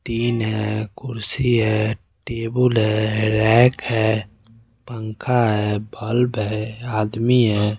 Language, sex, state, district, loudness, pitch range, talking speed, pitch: Hindi, male, Bihar, West Champaran, -20 LUFS, 110-120 Hz, 110 wpm, 110 Hz